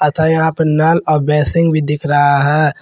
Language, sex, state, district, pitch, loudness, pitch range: Hindi, male, Jharkhand, Garhwa, 155 Hz, -13 LUFS, 150-160 Hz